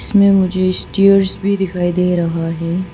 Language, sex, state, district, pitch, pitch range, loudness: Hindi, female, Arunachal Pradesh, Papum Pare, 185 Hz, 175-195 Hz, -15 LUFS